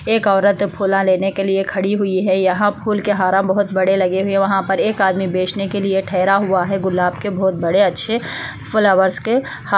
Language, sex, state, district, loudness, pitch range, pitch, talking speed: Hindi, female, Andhra Pradesh, Anantapur, -17 LUFS, 190-200 Hz, 195 Hz, 225 wpm